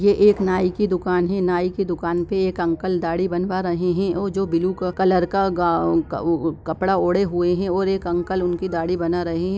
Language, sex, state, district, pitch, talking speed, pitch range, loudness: Hindi, female, Bihar, Lakhisarai, 180 Hz, 220 wpm, 175-190 Hz, -21 LUFS